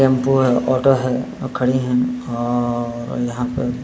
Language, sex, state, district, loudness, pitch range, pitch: Hindi, male, Bihar, Saran, -19 LUFS, 120-130 Hz, 125 Hz